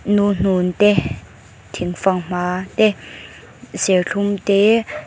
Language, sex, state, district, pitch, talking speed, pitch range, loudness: Mizo, female, Mizoram, Aizawl, 190 Hz, 70 wpm, 180-205 Hz, -18 LUFS